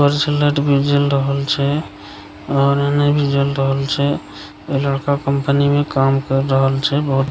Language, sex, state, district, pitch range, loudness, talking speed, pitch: Maithili, male, Bihar, Begusarai, 135-145 Hz, -17 LUFS, 165 wpm, 140 Hz